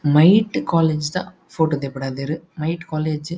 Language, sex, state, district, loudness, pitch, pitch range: Tulu, male, Karnataka, Dakshina Kannada, -20 LUFS, 160 Hz, 150-170 Hz